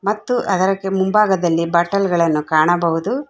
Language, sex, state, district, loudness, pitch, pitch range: Kannada, female, Karnataka, Bangalore, -17 LUFS, 190 Hz, 170-200 Hz